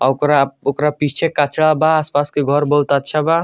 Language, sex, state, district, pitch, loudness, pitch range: Bhojpuri, male, Bihar, Muzaffarpur, 145 Hz, -16 LUFS, 140-155 Hz